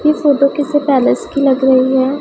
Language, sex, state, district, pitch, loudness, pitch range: Hindi, female, Punjab, Pathankot, 280 Hz, -13 LUFS, 265-290 Hz